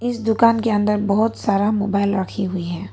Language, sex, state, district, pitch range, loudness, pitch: Hindi, female, Arunachal Pradesh, Papum Pare, 200-225 Hz, -19 LUFS, 205 Hz